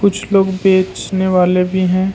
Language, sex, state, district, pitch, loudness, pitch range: Hindi, male, Jharkhand, Ranchi, 190 Hz, -14 LUFS, 185-195 Hz